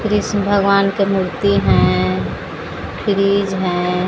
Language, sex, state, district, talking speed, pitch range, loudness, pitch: Hindi, female, Bihar, Patna, 105 wpm, 140-200 Hz, -17 LUFS, 195 Hz